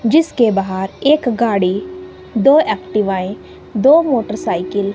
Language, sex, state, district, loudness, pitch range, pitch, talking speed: Hindi, female, Himachal Pradesh, Shimla, -15 LUFS, 190-250 Hz, 210 Hz, 110 wpm